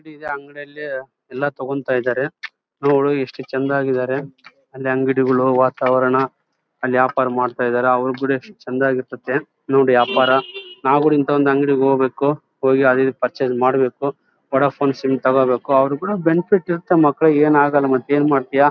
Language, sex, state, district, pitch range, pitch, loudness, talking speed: Kannada, male, Karnataka, Bellary, 130-145 Hz, 135 Hz, -18 LUFS, 145 wpm